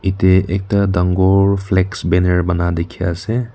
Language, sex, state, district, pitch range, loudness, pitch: Nagamese, male, Nagaland, Kohima, 90-100 Hz, -16 LUFS, 95 Hz